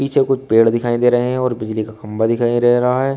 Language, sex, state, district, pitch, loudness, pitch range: Hindi, male, Uttar Pradesh, Shamli, 120 Hz, -16 LUFS, 115-130 Hz